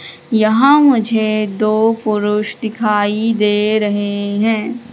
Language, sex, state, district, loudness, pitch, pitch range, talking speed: Hindi, female, Madhya Pradesh, Katni, -15 LUFS, 215 Hz, 210-225 Hz, 95 wpm